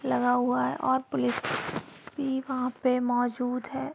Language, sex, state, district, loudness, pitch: Hindi, female, Bihar, Sitamarhi, -28 LUFS, 250 Hz